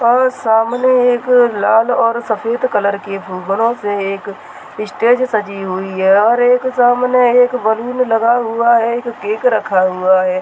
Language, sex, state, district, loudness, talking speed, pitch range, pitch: Hindi, male, Rajasthan, Nagaur, -14 LUFS, 155 wpm, 200-245 Hz, 230 Hz